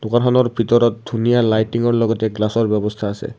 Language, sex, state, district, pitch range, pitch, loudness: Assamese, male, Assam, Kamrup Metropolitan, 110-120 Hz, 115 Hz, -17 LUFS